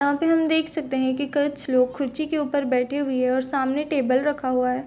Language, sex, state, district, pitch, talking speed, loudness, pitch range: Hindi, female, Chhattisgarh, Korba, 280 Hz, 260 wpm, -23 LUFS, 255-295 Hz